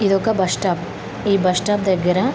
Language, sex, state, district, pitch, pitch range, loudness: Telugu, female, Andhra Pradesh, Krishna, 190 Hz, 180-205 Hz, -19 LUFS